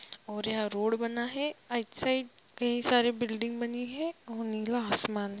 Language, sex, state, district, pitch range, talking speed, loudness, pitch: Hindi, female, Jharkhand, Jamtara, 220-245 Hz, 175 wpm, -32 LUFS, 235 Hz